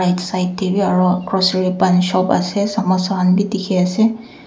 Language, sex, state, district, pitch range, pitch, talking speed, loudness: Nagamese, female, Nagaland, Dimapur, 180-200 Hz, 185 Hz, 160 wpm, -16 LUFS